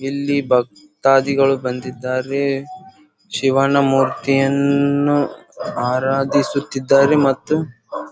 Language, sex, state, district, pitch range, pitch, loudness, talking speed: Kannada, male, Karnataka, Gulbarga, 135-145 Hz, 140 Hz, -17 LUFS, 50 wpm